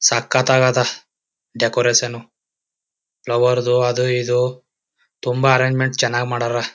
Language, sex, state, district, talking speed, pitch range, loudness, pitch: Kannada, male, Karnataka, Chamarajanagar, 100 wpm, 120-130 Hz, -18 LUFS, 125 Hz